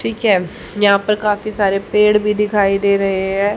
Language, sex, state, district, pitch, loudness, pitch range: Hindi, female, Haryana, Jhajjar, 205 Hz, -15 LUFS, 195-210 Hz